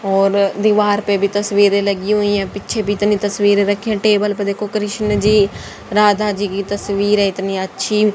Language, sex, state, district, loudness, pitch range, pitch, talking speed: Hindi, female, Haryana, Jhajjar, -16 LUFS, 200-210 Hz, 205 Hz, 175 wpm